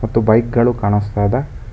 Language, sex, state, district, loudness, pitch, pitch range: Kannada, male, Karnataka, Bangalore, -16 LUFS, 110 Hz, 105-120 Hz